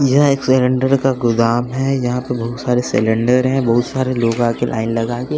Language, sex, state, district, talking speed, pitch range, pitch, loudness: Hindi, male, Bihar, West Champaran, 200 wpm, 120-130 Hz, 125 Hz, -16 LUFS